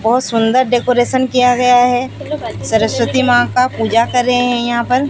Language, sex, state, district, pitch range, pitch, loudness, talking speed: Hindi, female, Odisha, Sambalpur, 240-255 Hz, 245 Hz, -14 LUFS, 175 wpm